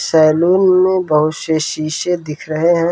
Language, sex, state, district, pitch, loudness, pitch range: Hindi, male, Bihar, Saran, 160 Hz, -15 LUFS, 155-180 Hz